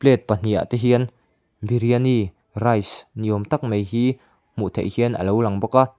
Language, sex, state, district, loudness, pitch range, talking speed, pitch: Mizo, male, Mizoram, Aizawl, -21 LUFS, 105-125 Hz, 190 wpm, 115 Hz